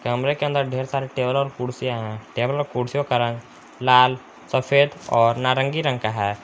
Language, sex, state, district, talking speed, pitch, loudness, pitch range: Hindi, male, Jharkhand, Palamu, 195 wpm, 130 Hz, -22 LUFS, 120-140 Hz